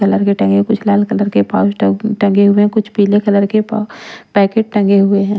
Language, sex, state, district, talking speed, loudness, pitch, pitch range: Hindi, female, Punjab, Pathankot, 225 wpm, -13 LUFS, 205 Hz, 195-215 Hz